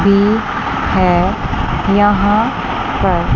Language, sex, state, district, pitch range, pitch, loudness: Hindi, female, Chandigarh, Chandigarh, 200-215 Hz, 205 Hz, -14 LUFS